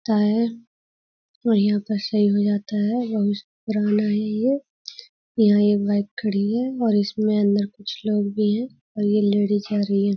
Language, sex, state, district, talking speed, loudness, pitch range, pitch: Hindi, female, Uttar Pradesh, Budaun, 185 wpm, -22 LUFS, 205-220 Hz, 210 Hz